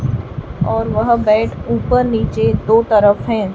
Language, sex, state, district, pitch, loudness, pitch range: Hindi, female, Chhattisgarh, Raipur, 220 Hz, -15 LUFS, 210-230 Hz